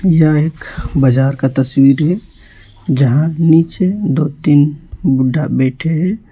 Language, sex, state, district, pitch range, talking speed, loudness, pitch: Hindi, male, West Bengal, Alipurduar, 135-165 Hz, 125 wpm, -13 LUFS, 150 Hz